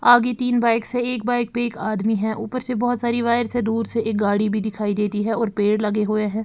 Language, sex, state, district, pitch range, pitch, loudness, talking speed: Hindi, female, Bihar, Patna, 215-240 Hz, 225 Hz, -21 LUFS, 270 wpm